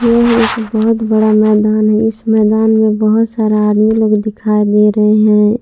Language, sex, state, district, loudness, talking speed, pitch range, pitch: Hindi, female, Jharkhand, Palamu, -11 LUFS, 180 wpm, 215-220 Hz, 215 Hz